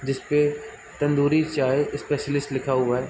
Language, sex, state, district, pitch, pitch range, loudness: Hindi, male, Bihar, Sitamarhi, 145 Hz, 135-145 Hz, -23 LUFS